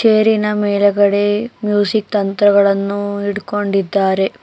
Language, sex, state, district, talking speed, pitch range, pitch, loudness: Kannada, female, Karnataka, Bangalore, 70 wpm, 200-210 Hz, 205 Hz, -15 LUFS